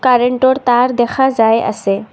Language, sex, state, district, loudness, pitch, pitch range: Assamese, female, Assam, Kamrup Metropolitan, -13 LUFS, 245 Hz, 225-255 Hz